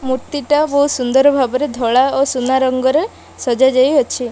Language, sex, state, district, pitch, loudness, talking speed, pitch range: Odia, female, Odisha, Malkangiri, 265 Hz, -15 LUFS, 165 wpm, 255-285 Hz